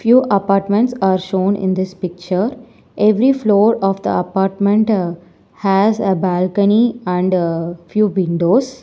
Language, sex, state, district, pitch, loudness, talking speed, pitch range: English, female, Telangana, Hyderabad, 195 Hz, -16 LUFS, 120 wpm, 185-215 Hz